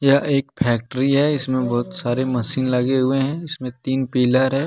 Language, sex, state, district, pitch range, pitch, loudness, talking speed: Hindi, male, Jharkhand, Deoghar, 125-140 Hz, 130 Hz, -20 LUFS, 205 wpm